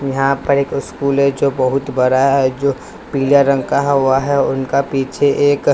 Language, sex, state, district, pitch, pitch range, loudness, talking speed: Hindi, male, Bihar, West Champaran, 140 Hz, 135-140 Hz, -15 LUFS, 190 wpm